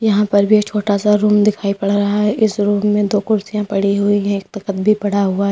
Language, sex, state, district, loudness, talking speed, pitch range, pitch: Hindi, female, Uttar Pradesh, Lalitpur, -16 LUFS, 270 wpm, 200-210 Hz, 205 Hz